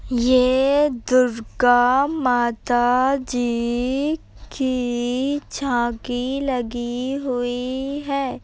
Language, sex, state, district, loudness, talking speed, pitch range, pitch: Hindi, female, Uttar Pradesh, Etah, -21 LUFS, 65 wpm, 245-270 Hz, 250 Hz